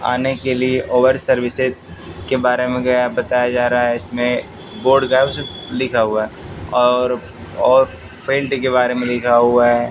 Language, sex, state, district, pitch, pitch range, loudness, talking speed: Hindi, male, Haryana, Jhajjar, 125 Hz, 120-130 Hz, -17 LUFS, 170 wpm